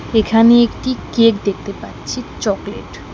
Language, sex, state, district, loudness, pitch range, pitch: Bengali, female, West Bengal, Alipurduar, -15 LUFS, 210-235 Hz, 225 Hz